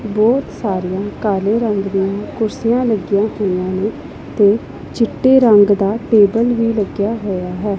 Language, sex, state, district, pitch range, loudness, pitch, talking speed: Punjabi, female, Punjab, Pathankot, 200-230 Hz, -16 LUFS, 210 Hz, 140 wpm